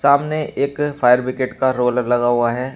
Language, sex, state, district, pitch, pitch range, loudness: Hindi, male, Uttar Pradesh, Shamli, 130 Hz, 125-140 Hz, -18 LUFS